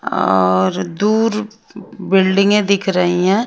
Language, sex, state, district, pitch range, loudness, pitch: Hindi, female, Haryana, Rohtak, 175-210 Hz, -15 LUFS, 195 Hz